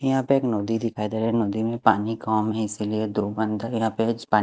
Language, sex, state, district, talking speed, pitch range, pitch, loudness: Hindi, male, Haryana, Rohtak, 190 wpm, 105-115 Hz, 110 Hz, -24 LUFS